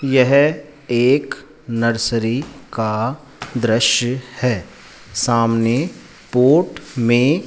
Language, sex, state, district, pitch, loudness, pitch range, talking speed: Hindi, male, Rajasthan, Jaipur, 125 Hz, -18 LUFS, 115-140 Hz, 80 wpm